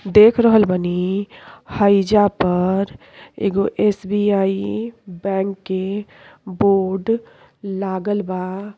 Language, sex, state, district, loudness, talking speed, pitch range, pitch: Bhojpuri, female, Uttar Pradesh, Deoria, -18 LUFS, 80 wpm, 190-205 Hz, 195 Hz